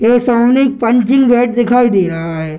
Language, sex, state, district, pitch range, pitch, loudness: Hindi, male, Bihar, Gaya, 195-245 Hz, 240 Hz, -12 LUFS